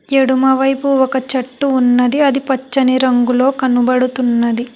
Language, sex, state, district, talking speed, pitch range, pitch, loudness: Telugu, female, Telangana, Hyderabad, 115 wpm, 250-270 Hz, 260 Hz, -14 LUFS